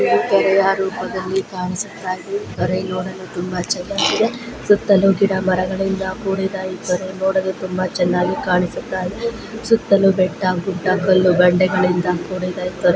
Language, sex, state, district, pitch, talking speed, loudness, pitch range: Kannada, female, Karnataka, Belgaum, 185 Hz, 100 wpm, -18 LUFS, 180-195 Hz